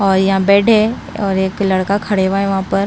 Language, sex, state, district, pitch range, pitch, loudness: Hindi, female, Himachal Pradesh, Shimla, 190-200 Hz, 195 Hz, -15 LUFS